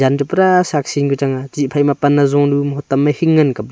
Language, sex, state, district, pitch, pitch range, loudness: Wancho, male, Arunachal Pradesh, Longding, 145 Hz, 140-145 Hz, -15 LUFS